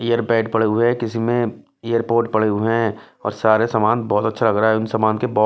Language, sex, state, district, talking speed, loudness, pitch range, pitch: Hindi, male, Bihar, West Champaran, 265 wpm, -19 LUFS, 110-115 Hz, 115 Hz